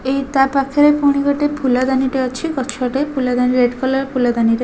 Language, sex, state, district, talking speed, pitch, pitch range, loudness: Odia, female, Odisha, Khordha, 195 wpm, 265 Hz, 250-280 Hz, -16 LUFS